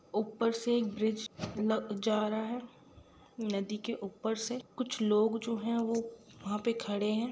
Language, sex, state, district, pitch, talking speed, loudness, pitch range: Hindi, female, Bihar, Gopalganj, 220 Hz, 165 wpm, -34 LUFS, 210-230 Hz